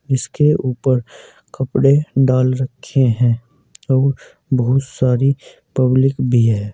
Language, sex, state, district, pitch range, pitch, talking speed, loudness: Hindi, male, Uttar Pradesh, Saharanpur, 125-135 Hz, 130 Hz, 105 wpm, -17 LUFS